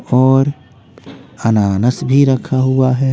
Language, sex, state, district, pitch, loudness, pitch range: Hindi, female, Bihar, West Champaran, 130 Hz, -14 LUFS, 125-135 Hz